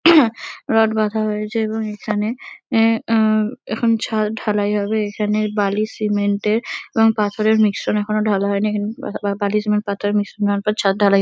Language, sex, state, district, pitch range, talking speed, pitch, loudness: Bengali, female, West Bengal, Kolkata, 205-220 Hz, 175 wpm, 215 Hz, -19 LUFS